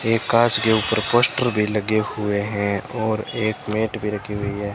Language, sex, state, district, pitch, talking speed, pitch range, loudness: Hindi, male, Rajasthan, Bikaner, 110 Hz, 200 wpm, 105-115 Hz, -21 LUFS